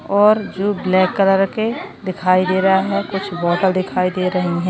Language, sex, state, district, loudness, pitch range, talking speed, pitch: Hindi, female, Maharashtra, Dhule, -17 LUFS, 185-200 Hz, 205 wpm, 190 Hz